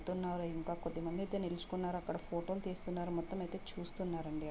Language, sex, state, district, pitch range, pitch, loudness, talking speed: Telugu, female, Andhra Pradesh, Guntur, 170-185 Hz, 175 Hz, -41 LUFS, 105 wpm